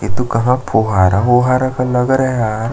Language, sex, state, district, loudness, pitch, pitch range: Hindi, male, Chhattisgarh, Jashpur, -14 LUFS, 125 Hz, 110-125 Hz